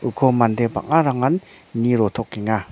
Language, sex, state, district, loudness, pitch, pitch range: Garo, male, Meghalaya, North Garo Hills, -20 LUFS, 120 Hz, 110-130 Hz